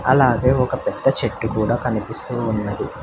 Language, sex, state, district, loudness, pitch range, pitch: Telugu, male, Telangana, Hyderabad, -20 LUFS, 110-130 Hz, 120 Hz